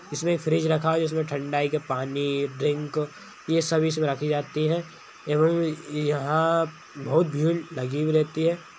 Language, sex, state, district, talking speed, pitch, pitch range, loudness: Hindi, male, Bihar, Madhepura, 165 wpm, 155 Hz, 145-160 Hz, -25 LUFS